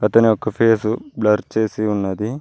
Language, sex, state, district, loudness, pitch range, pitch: Telugu, male, Telangana, Mahabubabad, -18 LUFS, 105-115 Hz, 110 Hz